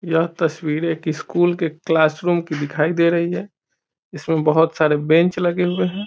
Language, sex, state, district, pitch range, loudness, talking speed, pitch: Hindi, male, Bihar, Saran, 155-175 Hz, -19 LUFS, 190 wpm, 165 Hz